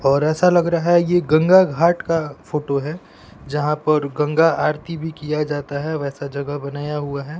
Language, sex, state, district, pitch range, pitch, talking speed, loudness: Hindi, male, Bihar, West Champaran, 145-165 Hz, 150 Hz, 195 wpm, -19 LUFS